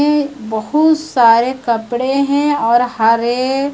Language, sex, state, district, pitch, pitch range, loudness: Hindi, male, Chhattisgarh, Raipur, 255 Hz, 235-285 Hz, -14 LUFS